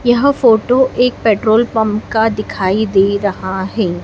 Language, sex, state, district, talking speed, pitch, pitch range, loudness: Hindi, female, Madhya Pradesh, Dhar, 150 wpm, 220 Hz, 200-240 Hz, -14 LUFS